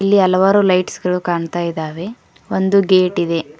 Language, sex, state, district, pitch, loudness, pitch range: Kannada, female, Karnataka, Koppal, 180 Hz, -16 LUFS, 170-190 Hz